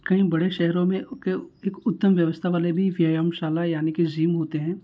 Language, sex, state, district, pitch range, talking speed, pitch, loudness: Hindi, male, Bihar, Muzaffarpur, 165-190 Hz, 210 wpm, 170 Hz, -24 LUFS